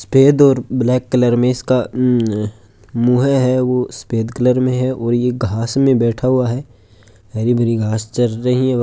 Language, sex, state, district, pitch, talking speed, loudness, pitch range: Hindi, male, Rajasthan, Churu, 125 Hz, 175 wpm, -16 LUFS, 115-130 Hz